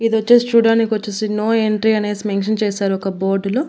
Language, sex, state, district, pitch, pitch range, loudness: Telugu, female, Andhra Pradesh, Annamaya, 215 Hz, 200-225 Hz, -17 LUFS